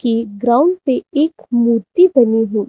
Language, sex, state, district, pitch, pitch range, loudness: Hindi, female, Himachal Pradesh, Shimla, 240 Hz, 230-300 Hz, -15 LUFS